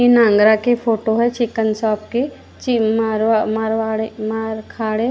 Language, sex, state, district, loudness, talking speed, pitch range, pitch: Hindi, female, Maharashtra, Gondia, -18 LUFS, 130 wpm, 220-235 Hz, 220 Hz